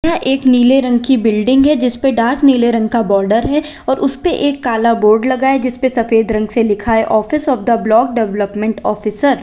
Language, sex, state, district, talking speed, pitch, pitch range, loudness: Hindi, female, Uttar Pradesh, Lalitpur, 230 wpm, 240 Hz, 220-265 Hz, -13 LUFS